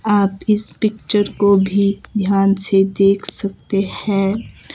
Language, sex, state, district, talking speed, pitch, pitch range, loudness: Hindi, female, Himachal Pradesh, Shimla, 125 wpm, 200 Hz, 195-205 Hz, -17 LUFS